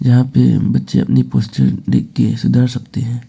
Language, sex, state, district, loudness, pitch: Hindi, male, Arunachal Pradesh, Papum Pare, -15 LUFS, 120 Hz